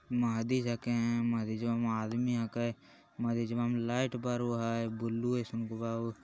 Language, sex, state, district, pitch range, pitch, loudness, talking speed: Magahi, male, Bihar, Jamui, 115-120 Hz, 115 Hz, -34 LUFS, 155 wpm